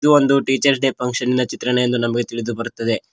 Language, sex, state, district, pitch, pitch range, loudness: Kannada, male, Karnataka, Koppal, 125 Hz, 120-135 Hz, -19 LUFS